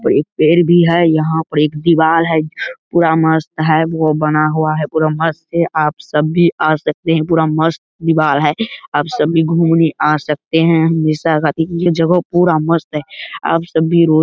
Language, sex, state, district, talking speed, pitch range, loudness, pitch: Hindi, male, Bihar, Araria, 200 wpm, 155-165 Hz, -14 LUFS, 160 Hz